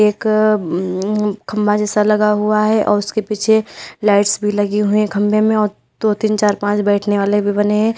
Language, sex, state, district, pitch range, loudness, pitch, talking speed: Hindi, female, Uttar Pradesh, Lalitpur, 205-215 Hz, -16 LUFS, 210 Hz, 205 wpm